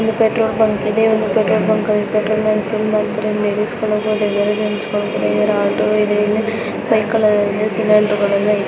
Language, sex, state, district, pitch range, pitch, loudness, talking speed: Kannada, female, Karnataka, Dakshina Kannada, 210-215 Hz, 215 Hz, -16 LUFS, 110 wpm